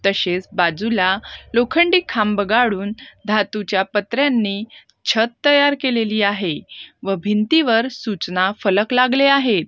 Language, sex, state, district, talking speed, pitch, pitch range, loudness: Marathi, female, Maharashtra, Gondia, 105 wpm, 215 Hz, 195-250 Hz, -18 LUFS